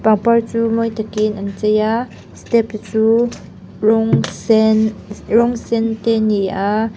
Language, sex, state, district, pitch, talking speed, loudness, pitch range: Mizo, female, Mizoram, Aizawl, 220 Hz, 145 wpm, -16 LUFS, 215-230 Hz